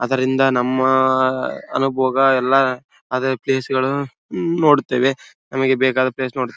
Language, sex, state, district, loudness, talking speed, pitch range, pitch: Kannada, male, Karnataka, Bellary, -18 LUFS, 100 wpm, 130-135 Hz, 130 Hz